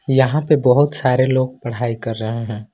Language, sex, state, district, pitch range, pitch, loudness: Hindi, male, Jharkhand, Ranchi, 115-135 Hz, 130 Hz, -18 LUFS